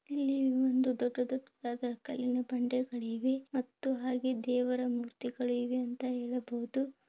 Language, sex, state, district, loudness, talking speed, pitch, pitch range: Kannada, female, Karnataka, Bellary, -34 LUFS, 95 wpm, 250 Hz, 245-260 Hz